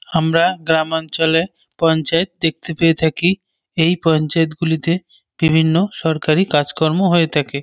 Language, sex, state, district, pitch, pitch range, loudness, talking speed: Bengali, male, West Bengal, North 24 Parganas, 165 Hz, 160-170 Hz, -17 LUFS, 110 wpm